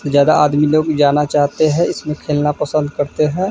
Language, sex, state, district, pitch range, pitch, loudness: Hindi, male, Bihar, Vaishali, 145-155 Hz, 150 Hz, -15 LUFS